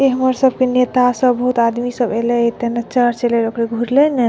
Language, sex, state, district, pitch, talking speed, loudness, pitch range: Maithili, female, Bihar, Madhepura, 245 Hz, 265 wpm, -16 LUFS, 235-255 Hz